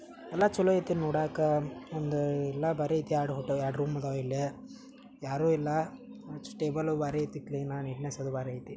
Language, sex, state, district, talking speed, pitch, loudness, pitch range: Kannada, male, Karnataka, Belgaum, 130 wpm, 150 Hz, -32 LUFS, 140-165 Hz